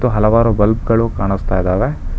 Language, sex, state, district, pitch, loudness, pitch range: Kannada, male, Karnataka, Bangalore, 105 Hz, -15 LUFS, 95-115 Hz